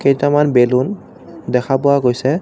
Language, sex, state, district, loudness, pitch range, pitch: Assamese, male, Assam, Kamrup Metropolitan, -15 LUFS, 125-145 Hz, 135 Hz